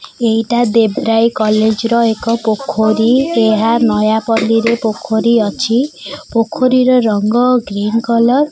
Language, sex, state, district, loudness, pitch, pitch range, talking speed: Odia, female, Odisha, Khordha, -13 LUFS, 230 Hz, 220-240 Hz, 110 wpm